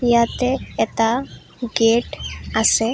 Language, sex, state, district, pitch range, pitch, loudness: Assamese, female, Assam, Kamrup Metropolitan, 230-250 Hz, 240 Hz, -20 LUFS